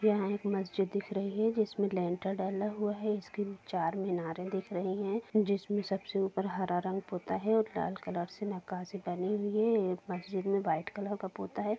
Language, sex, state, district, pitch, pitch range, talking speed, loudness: Hindi, female, Jharkhand, Jamtara, 195 Hz, 185-205 Hz, 200 wpm, -34 LUFS